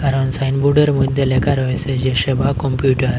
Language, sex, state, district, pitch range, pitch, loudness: Bengali, male, Assam, Hailakandi, 130-140 Hz, 135 Hz, -17 LUFS